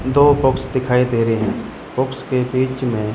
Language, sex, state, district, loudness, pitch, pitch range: Hindi, male, Chandigarh, Chandigarh, -18 LUFS, 130 Hz, 125-130 Hz